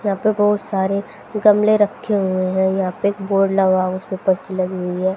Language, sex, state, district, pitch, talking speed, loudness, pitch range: Hindi, female, Haryana, Jhajjar, 195 Hz, 210 wpm, -18 LUFS, 185-205 Hz